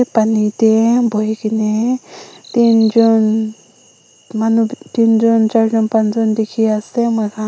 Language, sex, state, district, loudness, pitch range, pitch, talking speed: Nagamese, female, Nagaland, Dimapur, -14 LUFS, 220-230 Hz, 225 Hz, 135 wpm